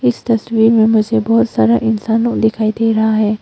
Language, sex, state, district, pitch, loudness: Hindi, female, Arunachal Pradesh, Longding, 220 Hz, -14 LUFS